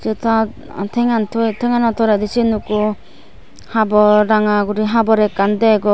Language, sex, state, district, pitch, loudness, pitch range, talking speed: Chakma, female, Tripura, West Tripura, 215 Hz, -16 LUFS, 210-225 Hz, 130 wpm